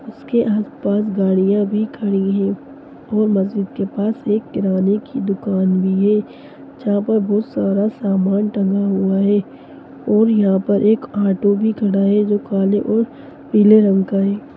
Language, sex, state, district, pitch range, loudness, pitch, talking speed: Hindi, female, Bihar, East Champaran, 195-220 Hz, -17 LUFS, 205 Hz, 160 wpm